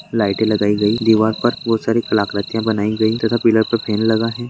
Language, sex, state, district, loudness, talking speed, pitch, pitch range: Hindi, male, Maharashtra, Chandrapur, -17 LUFS, 215 wpm, 110 Hz, 110-115 Hz